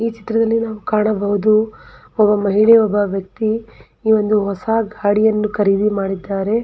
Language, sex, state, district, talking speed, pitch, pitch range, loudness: Kannada, female, Karnataka, Belgaum, 125 wpm, 215 Hz, 205-220 Hz, -17 LUFS